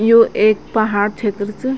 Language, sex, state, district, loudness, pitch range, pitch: Garhwali, female, Uttarakhand, Tehri Garhwal, -16 LUFS, 205-230 Hz, 215 Hz